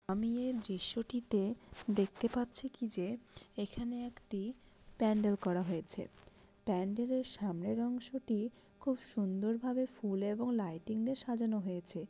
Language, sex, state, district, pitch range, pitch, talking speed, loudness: Bengali, female, West Bengal, Dakshin Dinajpur, 200-245 Hz, 220 Hz, 120 wpm, -37 LUFS